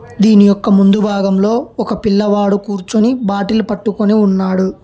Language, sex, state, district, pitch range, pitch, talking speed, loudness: Telugu, male, Telangana, Hyderabad, 200-215 Hz, 205 Hz, 125 wpm, -13 LUFS